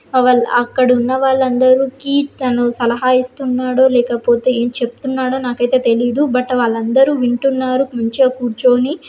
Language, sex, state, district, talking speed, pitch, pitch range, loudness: Telugu, female, Andhra Pradesh, Srikakulam, 125 wpm, 255 Hz, 245-260 Hz, -15 LUFS